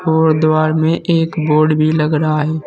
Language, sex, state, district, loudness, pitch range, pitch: Hindi, male, Uttar Pradesh, Saharanpur, -14 LUFS, 155-160 Hz, 155 Hz